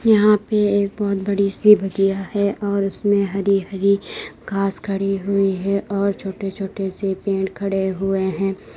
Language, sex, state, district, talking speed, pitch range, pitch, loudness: Hindi, female, Uttar Pradesh, Lalitpur, 165 wpm, 195-200 Hz, 195 Hz, -20 LUFS